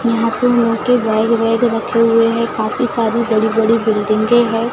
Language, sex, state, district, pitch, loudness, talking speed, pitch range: Hindi, female, Maharashtra, Gondia, 230 Hz, -14 LUFS, 165 wpm, 220-235 Hz